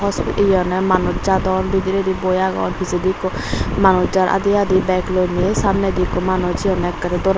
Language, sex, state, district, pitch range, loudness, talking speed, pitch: Chakma, female, Tripura, Unakoti, 185-190 Hz, -18 LUFS, 170 wpm, 185 Hz